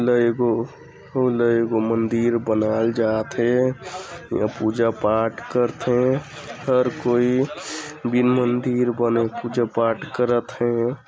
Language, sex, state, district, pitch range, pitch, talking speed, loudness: Chhattisgarhi, male, Chhattisgarh, Sarguja, 115-125 Hz, 120 Hz, 105 wpm, -21 LUFS